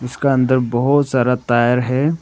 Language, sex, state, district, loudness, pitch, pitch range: Hindi, male, Arunachal Pradesh, Papum Pare, -16 LUFS, 125 Hz, 125-135 Hz